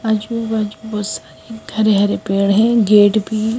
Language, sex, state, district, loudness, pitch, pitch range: Hindi, female, Punjab, Kapurthala, -16 LUFS, 215 Hz, 205-220 Hz